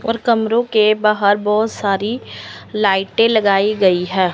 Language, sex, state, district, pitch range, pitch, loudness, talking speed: Hindi, male, Chandigarh, Chandigarh, 195-225 Hz, 210 Hz, -16 LUFS, 140 wpm